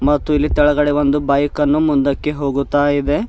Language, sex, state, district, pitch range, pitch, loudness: Kannada, male, Karnataka, Bidar, 140-150 Hz, 145 Hz, -16 LUFS